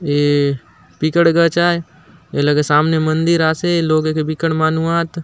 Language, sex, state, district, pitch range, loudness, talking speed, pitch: Halbi, male, Chhattisgarh, Bastar, 150-170 Hz, -16 LUFS, 170 wpm, 160 Hz